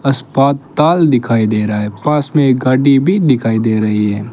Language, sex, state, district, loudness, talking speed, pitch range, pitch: Hindi, male, Rajasthan, Bikaner, -13 LUFS, 195 wpm, 110-140 Hz, 130 Hz